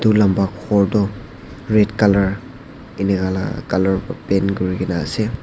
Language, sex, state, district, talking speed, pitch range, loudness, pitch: Nagamese, male, Nagaland, Dimapur, 110 wpm, 95-110 Hz, -18 LUFS, 100 Hz